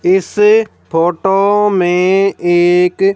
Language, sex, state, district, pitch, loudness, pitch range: Hindi, female, Haryana, Jhajjar, 190 Hz, -12 LUFS, 175-200 Hz